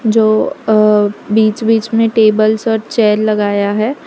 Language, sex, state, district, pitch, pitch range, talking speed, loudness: Hindi, female, Gujarat, Valsad, 215 Hz, 215-225 Hz, 150 wpm, -12 LUFS